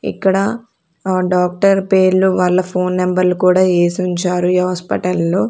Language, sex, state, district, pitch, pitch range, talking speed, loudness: Telugu, female, Andhra Pradesh, Sri Satya Sai, 185 Hz, 180-190 Hz, 140 wpm, -15 LUFS